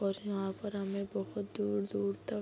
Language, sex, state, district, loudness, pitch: Hindi, female, Bihar, Bhagalpur, -37 LUFS, 195 Hz